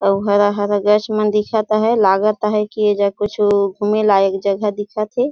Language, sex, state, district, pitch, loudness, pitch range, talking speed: Surgujia, female, Chhattisgarh, Sarguja, 210 Hz, -16 LUFS, 205-215 Hz, 205 wpm